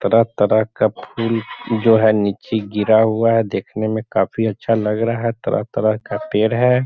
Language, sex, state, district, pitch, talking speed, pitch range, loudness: Hindi, male, Bihar, Sitamarhi, 110 Hz, 175 wpm, 110-115 Hz, -18 LUFS